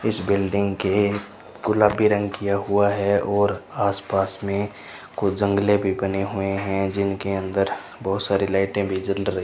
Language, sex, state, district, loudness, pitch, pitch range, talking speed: Hindi, male, Rajasthan, Bikaner, -20 LUFS, 100 Hz, 95-100 Hz, 170 wpm